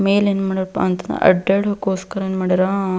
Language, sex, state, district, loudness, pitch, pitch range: Kannada, female, Karnataka, Belgaum, -18 LUFS, 190 Hz, 185-195 Hz